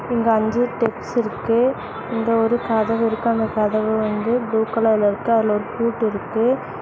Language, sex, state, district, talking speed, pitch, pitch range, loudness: Tamil, female, Tamil Nadu, Namakkal, 140 wpm, 225 Hz, 220-235 Hz, -20 LUFS